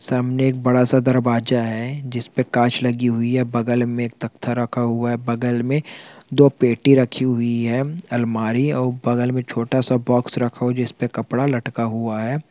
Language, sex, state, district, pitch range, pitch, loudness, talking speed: Hindi, male, Chhattisgarh, Rajnandgaon, 120-130 Hz, 125 Hz, -20 LUFS, 190 wpm